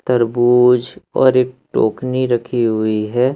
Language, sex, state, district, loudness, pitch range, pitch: Hindi, male, Madhya Pradesh, Katni, -16 LUFS, 115-130 Hz, 125 Hz